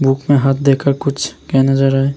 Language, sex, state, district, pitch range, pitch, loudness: Hindi, male, Bihar, Vaishali, 135-140 Hz, 135 Hz, -14 LUFS